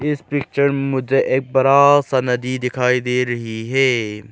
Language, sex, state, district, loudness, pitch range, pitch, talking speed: Hindi, male, Arunachal Pradesh, Lower Dibang Valley, -17 LUFS, 125-140 Hz, 130 Hz, 165 wpm